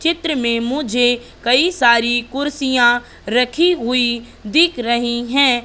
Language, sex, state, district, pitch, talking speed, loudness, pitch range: Hindi, female, Madhya Pradesh, Katni, 245 Hz, 115 wpm, -16 LUFS, 240-280 Hz